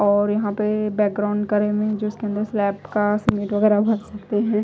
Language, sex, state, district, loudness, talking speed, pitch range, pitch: Hindi, female, Odisha, Malkangiri, -21 LUFS, 205 wpm, 205-215 Hz, 210 Hz